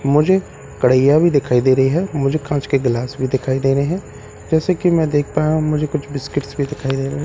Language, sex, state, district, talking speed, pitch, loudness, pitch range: Hindi, male, Bihar, Katihar, 255 wpm, 140 Hz, -17 LUFS, 135-155 Hz